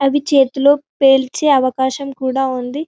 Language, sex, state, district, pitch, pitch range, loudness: Telugu, female, Telangana, Karimnagar, 270 Hz, 265-285 Hz, -15 LUFS